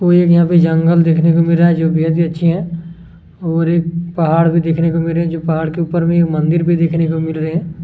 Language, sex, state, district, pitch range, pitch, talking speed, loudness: Hindi, male, Chhattisgarh, Kabirdham, 165-170 Hz, 165 Hz, 275 wpm, -14 LUFS